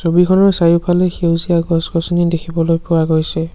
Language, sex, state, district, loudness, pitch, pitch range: Assamese, male, Assam, Sonitpur, -14 LUFS, 170 Hz, 165-175 Hz